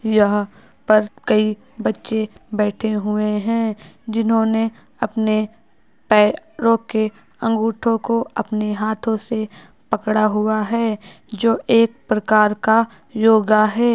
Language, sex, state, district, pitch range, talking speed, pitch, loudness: Hindi, female, Uttar Pradesh, Budaun, 215-225 Hz, 110 wpm, 220 Hz, -19 LUFS